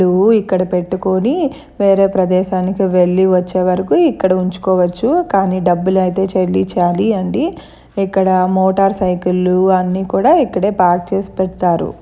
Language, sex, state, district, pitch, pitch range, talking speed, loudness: Telugu, female, Andhra Pradesh, Krishna, 185 Hz, 185-195 Hz, 110 wpm, -14 LUFS